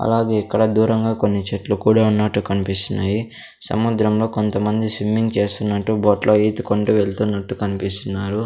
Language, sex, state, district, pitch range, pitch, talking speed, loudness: Telugu, male, Andhra Pradesh, Sri Satya Sai, 100-110 Hz, 105 Hz, 115 wpm, -19 LUFS